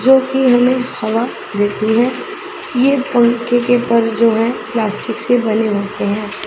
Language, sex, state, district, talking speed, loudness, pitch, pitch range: Hindi, female, Punjab, Pathankot, 150 wpm, -15 LUFS, 235 Hz, 220-245 Hz